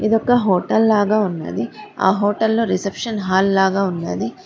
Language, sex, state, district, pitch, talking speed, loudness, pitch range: Telugu, female, Telangana, Hyderabad, 205 Hz, 150 wpm, -18 LUFS, 190-220 Hz